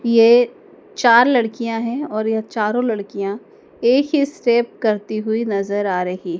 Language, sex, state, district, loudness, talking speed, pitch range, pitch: Hindi, female, Madhya Pradesh, Dhar, -18 LUFS, 150 wpm, 210-240 Hz, 225 Hz